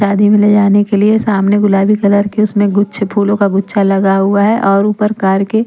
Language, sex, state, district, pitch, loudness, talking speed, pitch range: Hindi, female, Punjab, Pathankot, 205 Hz, -11 LUFS, 230 wpm, 200-210 Hz